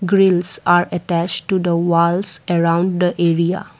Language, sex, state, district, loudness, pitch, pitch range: English, female, Assam, Kamrup Metropolitan, -16 LUFS, 175 Hz, 170-185 Hz